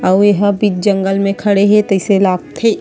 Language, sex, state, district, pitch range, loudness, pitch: Chhattisgarhi, female, Chhattisgarh, Sarguja, 195-205 Hz, -13 LUFS, 200 Hz